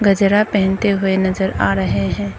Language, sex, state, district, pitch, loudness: Hindi, female, Arunachal Pradesh, Papum Pare, 190 Hz, -16 LUFS